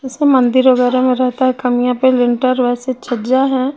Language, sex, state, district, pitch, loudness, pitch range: Hindi, female, Chhattisgarh, Raipur, 255 Hz, -14 LUFS, 250-260 Hz